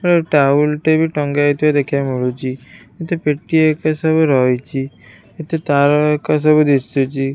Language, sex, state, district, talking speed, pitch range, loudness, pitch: Odia, female, Odisha, Khordha, 145 wpm, 135-155 Hz, -16 LUFS, 150 Hz